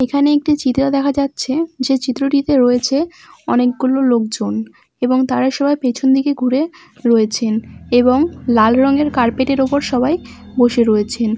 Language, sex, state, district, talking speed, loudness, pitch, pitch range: Bengali, female, West Bengal, Malda, 125 wpm, -16 LUFS, 260 Hz, 245-280 Hz